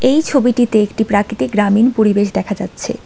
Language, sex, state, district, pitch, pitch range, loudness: Bengali, female, West Bengal, Alipurduar, 220 Hz, 205-245 Hz, -15 LUFS